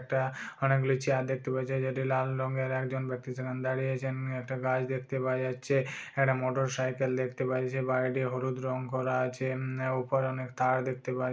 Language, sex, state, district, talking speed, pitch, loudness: Bajjika, male, Bihar, Vaishali, 195 wpm, 130 Hz, -31 LUFS